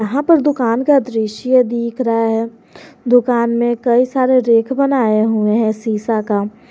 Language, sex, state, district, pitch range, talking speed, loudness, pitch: Hindi, female, Jharkhand, Garhwa, 225-255 Hz, 160 wpm, -15 LUFS, 235 Hz